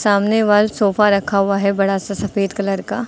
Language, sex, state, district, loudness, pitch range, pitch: Hindi, female, Uttar Pradesh, Lucknow, -17 LUFS, 195-210 Hz, 200 Hz